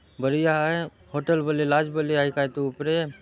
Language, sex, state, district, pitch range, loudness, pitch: Halbi, male, Chhattisgarh, Bastar, 145-155 Hz, -24 LUFS, 150 Hz